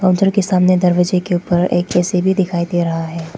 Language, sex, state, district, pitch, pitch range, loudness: Hindi, female, Arunachal Pradesh, Papum Pare, 180 Hz, 175-185 Hz, -15 LUFS